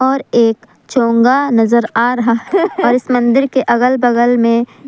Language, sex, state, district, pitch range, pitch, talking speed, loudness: Hindi, female, Jharkhand, Palamu, 235-260 Hz, 245 Hz, 170 wpm, -13 LUFS